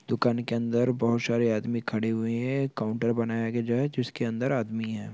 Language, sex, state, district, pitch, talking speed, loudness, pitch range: Hindi, male, Chhattisgarh, Bastar, 115 Hz, 220 wpm, -28 LUFS, 115-120 Hz